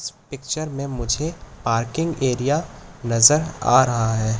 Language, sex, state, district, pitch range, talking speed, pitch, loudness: Hindi, male, Madhya Pradesh, Katni, 115-155 Hz, 135 wpm, 135 Hz, -20 LUFS